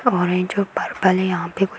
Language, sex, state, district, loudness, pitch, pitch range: Hindi, female, Uttar Pradesh, Hamirpur, -20 LUFS, 185 Hz, 180-200 Hz